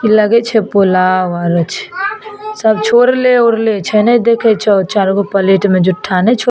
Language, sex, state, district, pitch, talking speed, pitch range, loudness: Maithili, female, Bihar, Samastipur, 215 Hz, 165 wpm, 195-235 Hz, -12 LUFS